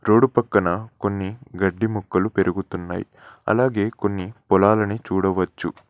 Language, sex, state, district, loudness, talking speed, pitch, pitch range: Telugu, male, Telangana, Mahabubabad, -22 LUFS, 100 wpm, 100 Hz, 95-105 Hz